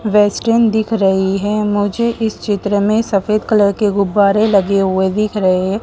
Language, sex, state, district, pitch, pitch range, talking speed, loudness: Hindi, female, Madhya Pradesh, Dhar, 205 Hz, 200-215 Hz, 175 wpm, -14 LUFS